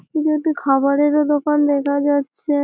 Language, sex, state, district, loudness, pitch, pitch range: Bengali, female, West Bengal, Malda, -18 LUFS, 290 Hz, 285-300 Hz